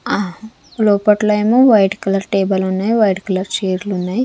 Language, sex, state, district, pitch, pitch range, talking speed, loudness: Telugu, female, Andhra Pradesh, Sri Satya Sai, 200 Hz, 190-215 Hz, 155 wpm, -15 LUFS